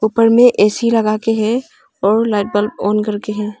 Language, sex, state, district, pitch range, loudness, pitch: Hindi, female, Arunachal Pradesh, Papum Pare, 210-230 Hz, -15 LUFS, 215 Hz